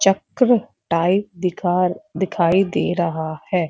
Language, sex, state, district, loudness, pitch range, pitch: Hindi, female, Uttar Pradesh, Muzaffarnagar, -20 LUFS, 170-195 Hz, 180 Hz